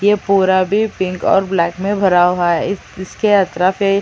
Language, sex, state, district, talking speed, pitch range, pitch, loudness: Hindi, female, Chhattisgarh, Sarguja, 195 wpm, 180-200 Hz, 190 Hz, -15 LUFS